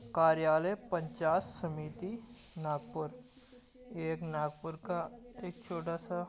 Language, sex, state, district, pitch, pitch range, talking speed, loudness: Hindi, female, Maharashtra, Nagpur, 170 Hz, 160-220 Hz, 105 wpm, -36 LUFS